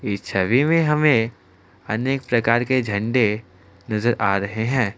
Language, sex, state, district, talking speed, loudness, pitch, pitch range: Hindi, male, Assam, Kamrup Metropolitan, 145 wpm, -20 LUFS, 110 Hz, 100-125 Hz